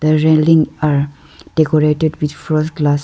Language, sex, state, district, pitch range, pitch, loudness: English, female, Arunachal Pradesh, Lower Dibang Valley, 150-155 Hz, 155 Hz, -15 LUFS